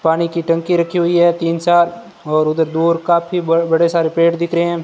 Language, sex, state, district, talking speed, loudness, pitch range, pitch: Hindi, male, Rajasthan, Bikaner, 235 wpm, -15 LUFS, 165-170 Hz, 170 Hz